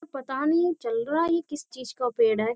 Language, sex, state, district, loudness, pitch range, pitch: Hindi, female, Uttar Pradesh, Jyotiba Phule Nagar, -26 LUFS, 235-320 Hz, 270 Hz